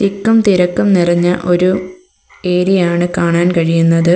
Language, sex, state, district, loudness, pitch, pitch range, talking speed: Malayalam, female, Kerala, Kollam, -13 LUFS, 180 Hz, 175-190 Hz, 100 wpm